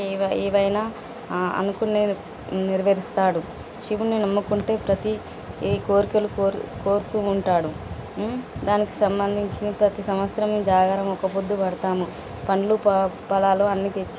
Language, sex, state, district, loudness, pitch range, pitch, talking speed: Telugu, female, Telangana, Nalgonda, -23 LUFS, 195-210 Hz, 200 Hz, 110 wpm